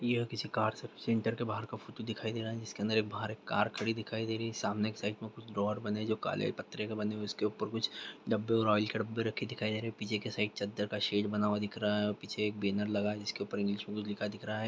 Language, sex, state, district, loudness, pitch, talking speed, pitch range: Hindi, male, Bihar, Lakhisarai, -35 LUFS, 110 Hz, 315 wpm, 105-110 Hz